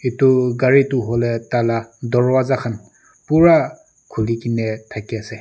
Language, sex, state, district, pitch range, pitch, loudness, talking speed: Nagamese, male, Nagaland, Dimapur, 115-130 Hz, 120 Hz, -18 LUFS, 155 wpm